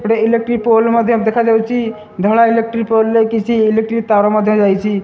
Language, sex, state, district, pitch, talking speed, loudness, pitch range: Odia, male, Odisha, Malkangiri, 225 Hz, 165 wpm, -13 LUFS, 215-230 Hz